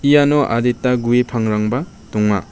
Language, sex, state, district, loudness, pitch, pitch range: Garo, male, Meghalaya, West Garo Hills, -17 LUFS, 120 Hz, 110-140 Hz